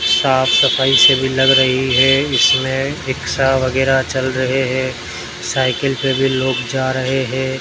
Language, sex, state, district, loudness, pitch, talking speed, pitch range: Hindi, male, Rajasthan, Bikaner, -15 LUFS, 130 Hz, 155 wpm, 130-135 Hz